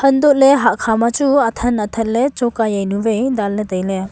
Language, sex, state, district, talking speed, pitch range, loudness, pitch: Wancho, female, Arunachal Pradesh, Longding, 160 wpm, 210-265 Hz, -15 LUFS, 230 Hz